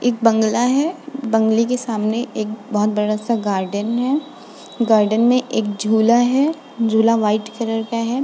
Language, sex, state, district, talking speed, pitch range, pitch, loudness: Hindi, female, Uttar Pradesh, Muzaffarnagar, 160 wpm, 215-245 Hz, 230 Hz, -18 LUFS